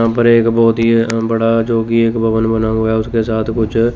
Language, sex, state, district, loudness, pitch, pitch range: Hindi, male, Chandigarh, Chandigarh, -14 LUFS, 115 Hz, 110-115 Hz